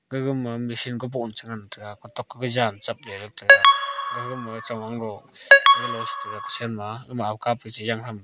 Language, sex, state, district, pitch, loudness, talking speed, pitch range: Wancho, male, Arunachal Pradesh, Longding, 120 Hz, -21 LUFS, 160 wpm, 110-140 Hz